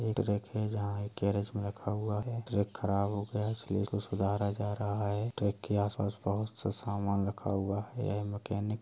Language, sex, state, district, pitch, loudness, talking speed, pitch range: Hindi, male, Uttar Pradesh, Hamirpur, 100 Hz, -34 LUFS, 225 wpm, 100-105 Hz